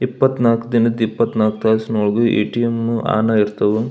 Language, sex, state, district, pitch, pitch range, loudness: Kannada, male, Karnataka, Belgaum, 115 Hz, 110-115 Hz, -17 LUFS